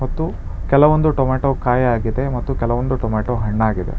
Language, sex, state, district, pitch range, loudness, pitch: Kannada, male, Karnataka, Bangalore, 110-135 Hz, -18 LUFS, 125 Hz